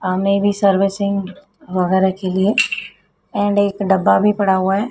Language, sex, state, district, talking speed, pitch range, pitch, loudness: Hindi, female, Madhya Pradesh, Dhar, 170 wpm, 190-200 Hz, 195 Hz, -17 LUFS